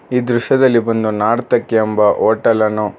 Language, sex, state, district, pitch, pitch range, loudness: Kannada, male, Karnataka, Bangalore, 115 Hz, 105-120 Hz, -14 LUFS